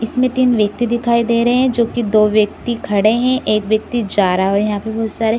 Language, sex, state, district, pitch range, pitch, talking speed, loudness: Hindi, female, Chhattisgarh, Bilaspur, 210-240 Hz, 225 Hz, 255 wpm, -16 LUFS